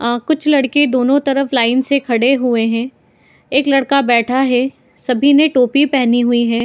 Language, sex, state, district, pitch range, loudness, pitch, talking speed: Hindi, female, Bihar, Madhepura, 240-275 Hz, -14 LUFS, 260 Hz, 200 wpm